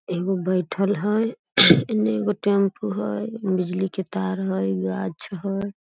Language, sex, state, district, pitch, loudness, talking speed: Maithili, female, Bihar, Samastipur, 190 Hz, -22 LUFS, 135 wpm